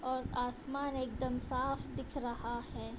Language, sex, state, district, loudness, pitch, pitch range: Hindi, female, Uttar Pradesh, Budaun, -39 LUFS, 255 Hz, 245-270 Hz